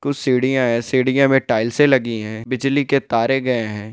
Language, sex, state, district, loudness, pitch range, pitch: Hindi, male, Rajasthan, Nagaur, -18 LUFS, 115-135 Hz, 130 Hz